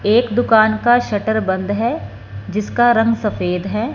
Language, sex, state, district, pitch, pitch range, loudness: Hindi, female, Punjab, Fazilka, 215 Hz, 190-230 Hz, -16 LUFS